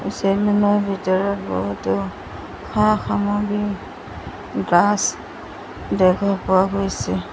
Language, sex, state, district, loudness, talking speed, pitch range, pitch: Assamese, female, Assam, Sonitpur, -20 LUFS, 55 wpm, 185-205 Hz, 195 Hz